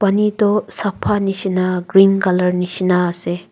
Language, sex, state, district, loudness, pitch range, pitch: Nagamese, female, Nagaland, Dimapur, -16 LUFS, 180-200 Hz, 185 Hz